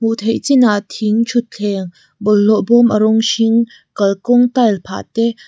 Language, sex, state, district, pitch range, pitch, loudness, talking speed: Mizo, female, Mizoram, Aizawl, 210-235 Hz, 225 Hz, -14 LUFS, 155 wpm